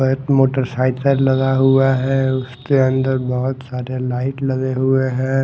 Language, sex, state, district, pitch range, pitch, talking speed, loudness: Hindi, male, Haryana, Jhajjar, 130-135 Hz, 130 Hz, 155 wpm, -17 LUFS